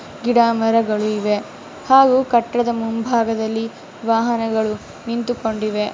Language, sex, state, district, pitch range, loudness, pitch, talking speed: Kannada, female, Karnataka, Mysore, 220-235 Hz, -18 LUFS, 225 Hz, 90 wpm